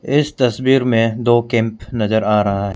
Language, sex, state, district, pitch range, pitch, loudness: Hindi, male, Arunachal Pradesh, Lower Dibang Valley, 110-125 Hz, 115 Hz, -16 LUFS